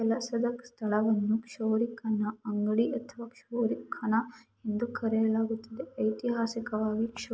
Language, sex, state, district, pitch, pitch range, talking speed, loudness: Kannada, female, Karnataka, Mysore, 225 Hz, 220-235 Hz, 75 wpm, -31 LUFS